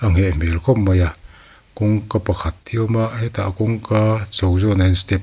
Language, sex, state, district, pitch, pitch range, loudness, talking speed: Mizo, male, Mizoram, Aizawl, 105 Hz, 90-110 Hz, -19 LUFS, 220 wpm